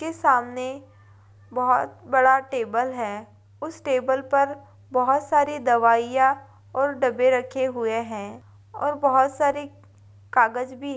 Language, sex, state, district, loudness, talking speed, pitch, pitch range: Hindi, female, Bihar, Madhepura, -23 LUFS, 125 wpm, 255 Hz, 215-275 Hz